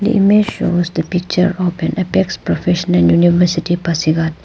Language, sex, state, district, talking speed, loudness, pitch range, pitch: English, female, Arunachal Pradesh, Papum Pare, 135 wpm, -15 LUFS, 165-180 Hz, 175 Hz